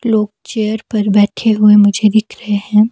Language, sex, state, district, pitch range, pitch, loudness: Hindi, female, Himachal Pradesh, Shimla, 210-220 Hz, 215 Hz, -13 LUFS